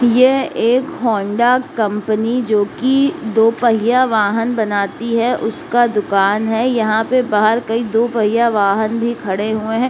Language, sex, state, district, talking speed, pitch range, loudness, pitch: Hindi, male, Uttar Pradesh, Deoria, 150 wpm, 215-240 Hz, -16 LUFS, 225 Hz